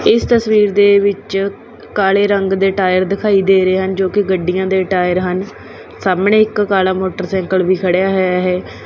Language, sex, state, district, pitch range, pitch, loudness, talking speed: Punjabi, female, Punjab, Kapurthala, 185-200 Hz, 190 Hz, -14 LUFS, 175 wpm